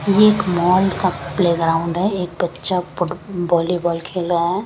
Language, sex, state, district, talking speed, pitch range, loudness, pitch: Hindi, female, Punjab, Kapurthala, 165 wpm, 170-185 Hz, -18 LUFS, 175 Hz